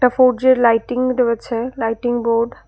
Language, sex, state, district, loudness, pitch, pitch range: Bengali, female, Tripura, West Tripura, -17 LUFS, 245 Hz, 230-255 Hz